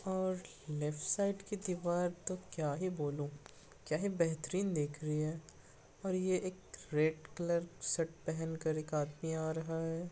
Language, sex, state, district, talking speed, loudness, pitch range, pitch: Hindi, male, Uttar Pradesh, Hamirpur, 165 wpm, -38 LUFS, 155-185 Hz, 165 Hz